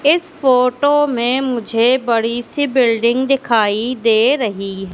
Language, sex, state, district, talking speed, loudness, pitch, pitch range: Hindi, female, Madhya Pradesh, Katni, 135 wpm, -15 LUFS, 245 Hz, 230-270 Hz